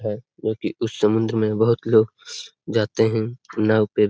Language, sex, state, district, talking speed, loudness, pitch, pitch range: Hindi, male, Jharkhand, Sahebganj, 160 wpm, -21 LUFS, 110 Hz, 110-115 Hz